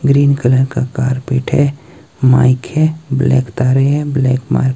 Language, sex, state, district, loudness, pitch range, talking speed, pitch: Hindi, male, Himachal Pradesh, Shimla, -14 LUFS, 130-140 Hz, 165 wpm, 130 Hz